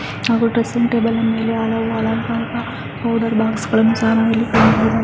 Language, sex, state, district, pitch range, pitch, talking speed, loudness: Kannada, female, Karnataka, Chamarajanagar, 225-230 Hz, 225 Hz, 70 wpm, -17 LUFS